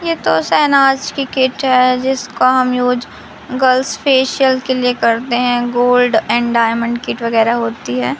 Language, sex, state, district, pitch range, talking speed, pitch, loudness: Hindi, female, Madhya Pradesh, Katni, 235-265 Hz, 160 wpm, 250 Hz, -14 LUFS